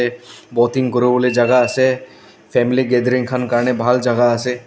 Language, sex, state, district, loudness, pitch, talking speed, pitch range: Nagamese, male, Nagaland, Dimapur, -16 LUFS, 125 Hz, 130 wpm, 120-125 Hz